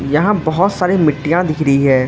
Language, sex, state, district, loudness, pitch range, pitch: Hindi, male, Arunachal Pradesh, Lower Dibang Valley, -14 LUFS, 145-180 Hz, 160 Hz